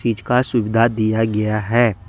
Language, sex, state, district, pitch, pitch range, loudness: Hindi, male, Bihar, West Champaran, 110 Hz, 110-120 Hz, -18 LUFS